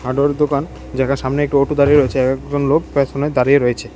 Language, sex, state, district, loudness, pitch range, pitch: Bengali, male, Tripura, West Tripura, -16 LUFS, 130-145 Hz, 140 Hz